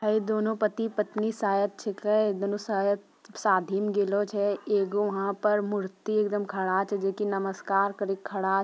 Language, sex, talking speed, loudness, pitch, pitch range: Magahi, female, 180 wpm, -28 LUFS, 205 Hz, 195-210 Hz